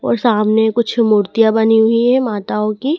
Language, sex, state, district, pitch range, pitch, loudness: Hindi, female, Madhya Pradesh, Dhar, 215-235 Hz, 225 Hz, -14 LUFS